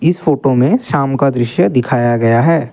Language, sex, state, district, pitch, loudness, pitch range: Hindi, male, Assam, Kamrup Metropolitan, 130 Hz, -13 LUFS, 120-145 Hz